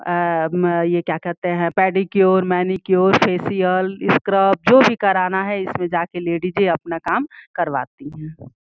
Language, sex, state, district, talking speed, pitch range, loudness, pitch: Hindi, female, Uttar Pradesh, Gorakhpur, 140 wpm, 170-190 Hz, -18 LUFS, 180 Hz